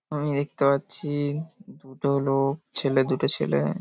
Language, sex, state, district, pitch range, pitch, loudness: Bengali, male, West Bengal, Paschim Medinipur, 135-150 Hz, 140 Hz, -25 LUFS